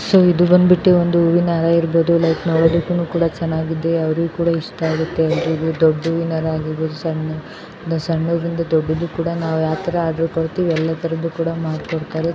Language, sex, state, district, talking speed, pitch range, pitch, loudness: Kannada, female, Karnataka, Bellary, 150 wpm, 160-170 Hz, 165 Hz, -18 LUFS